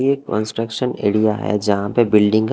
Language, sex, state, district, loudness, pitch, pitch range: Hindi, male, Haryana, Rohtak, -18 LUFS, 110 Hz, 105-120 Hz